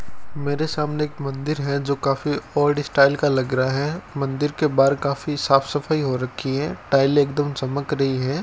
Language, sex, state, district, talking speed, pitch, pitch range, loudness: Hindi, male, Rajasthan, Bikaner, 190 wpm, 140 Hz, 135-150 Hz, -22 LUFS